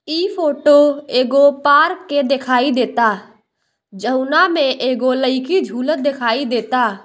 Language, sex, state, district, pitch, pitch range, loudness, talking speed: Bhojpuri, female, Bihar, Gopalganj, 265 Hz, 245-290 Hz, -15 LUFS, 120 wpm